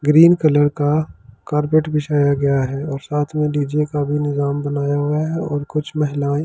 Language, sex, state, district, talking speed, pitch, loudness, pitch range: Hindi, male, Delhi, New Delhi, 185 wpm, 145 Hz, -18 LUFS, 145-150 Hz